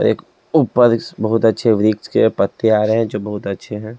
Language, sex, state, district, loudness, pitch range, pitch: Hindi, male, Delhi, New Delhi, -17 LUFS, 105-115 Hz, 110 Hz